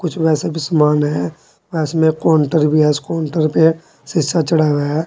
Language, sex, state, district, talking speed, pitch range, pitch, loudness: Hindi, male, Uttar Pradesh, Saharanpur, 200 wpm, 150-160 Hz, 155 Hz, -16 LUFS